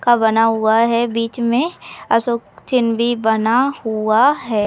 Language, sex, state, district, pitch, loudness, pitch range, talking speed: Hindi, female, Uttar Pradesh, Budaun, 230 Hz, -16 LUFS, 220-240 Hz, 155 wpm